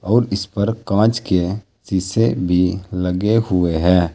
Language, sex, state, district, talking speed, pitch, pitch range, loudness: Hindi, male, Uttar Pradesh, Saharanpur, 145 wpm, 95 Hz, 90-110 Hz, -18 LUFS